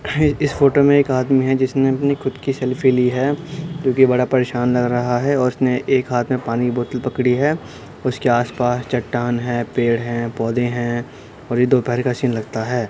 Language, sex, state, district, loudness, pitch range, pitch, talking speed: Hindi, male, Uttar Pradesh, Budaun, -18 LUFS, 120-135 Hz, 125 Hz, 215 wpm